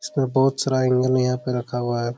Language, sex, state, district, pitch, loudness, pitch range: Hindi, male, Jharkhand, Jamtara, 125 Hz, -21 LUFS, 125-130 Hz